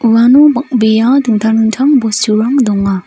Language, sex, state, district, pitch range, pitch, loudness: Garo, female, Meghalaya, North Garo Hills, 220-260 Hz, 230 Hz, -10 LUFS